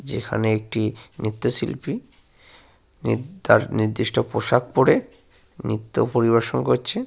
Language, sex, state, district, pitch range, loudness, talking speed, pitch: Bengali, male, Jharkhand, Sahebganj, 110-115 Hz, -22 LUFS, 85 wpm, 110 Hz